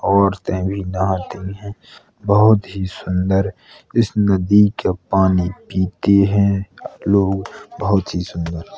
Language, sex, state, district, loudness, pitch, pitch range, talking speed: Hindi, male, Uttar Pradesh, Hamirpur, -18 LUFS, 95 Hz, 95-100 Hz, 125 wpm